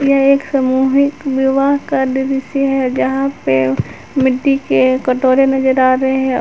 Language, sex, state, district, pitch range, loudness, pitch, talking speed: Hindi, female, Jharkhand, Garhwa, 260-275 Hz, -14 LUFS, 265 Hz, 150 wpm